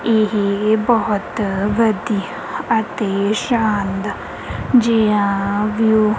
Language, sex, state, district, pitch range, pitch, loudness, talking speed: Punjabi, female, Punjab, Kapurthala, 200-220 Hz, 210 Hz, -18 LUFS, 75 wpm